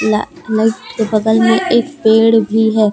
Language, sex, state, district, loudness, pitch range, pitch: Hindi, female, Jharkhand, Deoghar, -13 LUFS, 220-225 Hz, 220 Hz